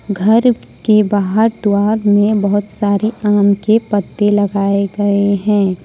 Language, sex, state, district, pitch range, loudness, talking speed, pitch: Hindi, female, Jharkhand, Ranchi, 200-215 Hz, -14 LUFS, 135 wpm, 205 Hz